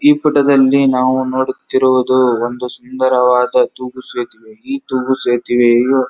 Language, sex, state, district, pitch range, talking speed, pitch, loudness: Kannada, male, Karnataka, Dharwad, 125-130 Hz, 130 wpm, 130 Hz, -14 LUFS